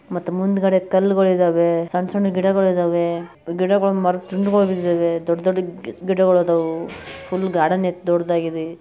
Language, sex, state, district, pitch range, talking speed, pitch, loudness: Kannada, male, Karnataka, Bijapur, 170-190 Hz, 100 wpm, 180 Hz, -19 LUFS